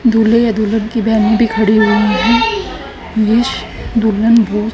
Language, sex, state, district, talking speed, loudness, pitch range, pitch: Hindi, female, Haryana, Charkhi Dadri, 140 wpm, -13 LUFS, 220-230 Hz, 225 Hz